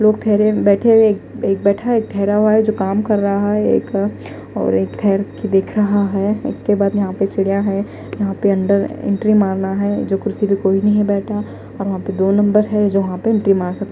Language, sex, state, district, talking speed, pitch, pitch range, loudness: Hindi, female, Punjab, Kapurthala, 225 wpm, 200 Hz, 195-210 Hz, -16 LUFS